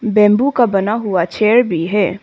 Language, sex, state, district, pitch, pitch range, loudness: Hindi, female, Arunachal Pradesh, Papum Pare, 210 Hz, 190-225 Hz, -14 LUFS